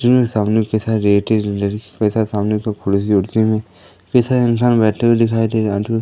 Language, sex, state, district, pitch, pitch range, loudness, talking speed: Hindi, male, Madhya Pradesh, Katni, 110 Hz, 105-115 Hz, -16 LUFS, 60 wpm